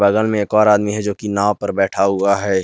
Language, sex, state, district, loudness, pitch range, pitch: Hindi, male, Jharkhand, Garhwa, -16 LUFS, 100-105 Hz, 100 Hz